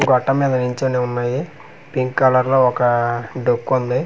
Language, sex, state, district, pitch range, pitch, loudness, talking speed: Telugu, male, Andhra Pradesh, Manyam, 125-135 Hz, 130 Hz, -18 LUFS, 150 wpm